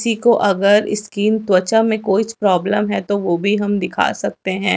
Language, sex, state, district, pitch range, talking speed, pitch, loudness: Hindi, female, Chhattisgarh, Raipur, 195-215 Hz, 200 wpm, 205 Hz, -17 LUFS